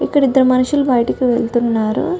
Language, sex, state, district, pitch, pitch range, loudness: Telugu, female, Telangana, Karimnagar, 255 Hz, 235-270 Hz, -15 LUFS